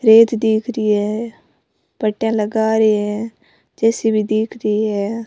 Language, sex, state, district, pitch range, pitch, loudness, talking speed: Rajasthani, female, Rajasthan, Nagaur, 215-225 Hz, 220 Hz, -17 LUFS, 135 wpm